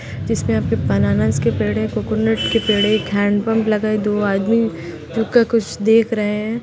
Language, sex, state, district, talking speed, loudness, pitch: Hindi, female, Bihar, Muzaffarpur, 210 wpm, -18 LUFS, 205 Hz